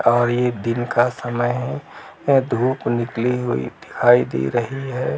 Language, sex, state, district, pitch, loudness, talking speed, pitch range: Hindi, male, Uttar Pradesh, Jalaun, 120 Hz, -20 LUFS, 160 wpm, 120-130 Hz